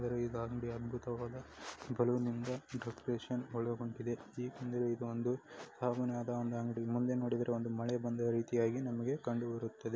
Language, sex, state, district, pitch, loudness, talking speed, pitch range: Kannada, male, Karnataka, Dakshina Kannada, 120 Hz, -39 LUFS, 95 wpm, 120-125 Hz